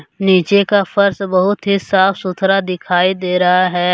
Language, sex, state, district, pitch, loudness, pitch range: Hindi, male, Jharkhand, Deoghar, 190 Hz, -14 LUFS, 180-200 Hz